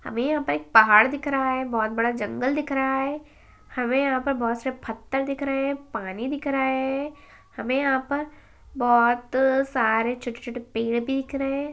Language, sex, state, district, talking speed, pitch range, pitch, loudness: Kumaoni, male, Uttarakhand, Uttarkashi, 190 wpm, 235-275 Hz, 265 Hz, -24 LUFS